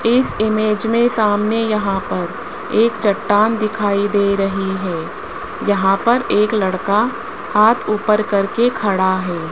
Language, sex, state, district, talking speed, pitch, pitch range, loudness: Hindi, male, Rajasthan, Jaipur, 130 wpm, 210 Hz, 200-225 Hz, -17 LUFS